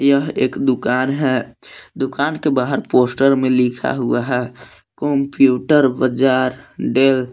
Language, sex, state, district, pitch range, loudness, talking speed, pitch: Hindi, male, Jharkhand, Palamu, 125-140 Hz, -17 LUFS, 125 wpm, 130 Hz